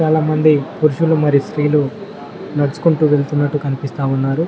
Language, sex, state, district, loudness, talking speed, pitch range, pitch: Telugu, male, Telangana, Mahabubabad, -16 LUFS, 95 wpm, 140-155 Hz, 145 Hz